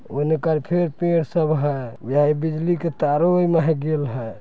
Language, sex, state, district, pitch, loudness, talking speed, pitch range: Hindi, male, Bihar, East Champaran, 155 Hz, -21 LUFS, 165 wpm, 145-170 Hz